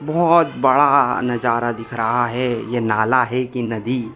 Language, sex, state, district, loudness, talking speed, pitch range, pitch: Hindi, male, Bihar, Darbhanga, -18 LUFS, 160 wpm, 115-130 Hz, 125 Hz